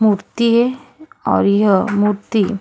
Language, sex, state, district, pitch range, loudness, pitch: Hindi, female, Goa, North and South Goa, 205-235 Hz, -16 LUFS, 210 Hz